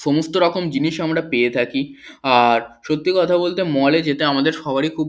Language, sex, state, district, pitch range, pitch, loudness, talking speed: Bengali, male, West Bengal, Kolkata, 135-165 Hz, 150 Hz, -18 LUFS, 175 wpm